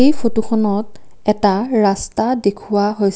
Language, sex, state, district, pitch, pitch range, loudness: Assamese, female, Assam, Kamrup Metropolitan, 210 Hz, 200-225 Hz, -17 LUFS